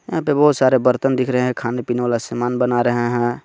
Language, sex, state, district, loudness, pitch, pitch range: Hindi, male, Jharkhand, Garhwa, -18 LUFS, 125 Hz, 120-130 Hz